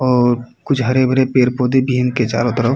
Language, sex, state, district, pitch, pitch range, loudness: Hindi, male, Uttar Pradesh, Muzaffarnagar, 125 Hz, 120-130 Hz, -16 LUFS